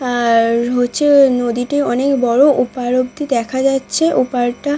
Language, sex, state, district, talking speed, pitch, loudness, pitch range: Bengali, female, West Bengal, Dakshin Dinajpur, 140 wpm, 255 Hz, -15 LUFS, 245-275 Hz